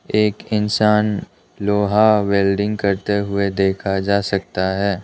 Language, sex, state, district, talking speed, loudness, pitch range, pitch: Hindi, male, Arunachal Pradesh, Lower Dibang Valley, 120 wpm, -18 LUFS, 100-105 Hz, 100 Hz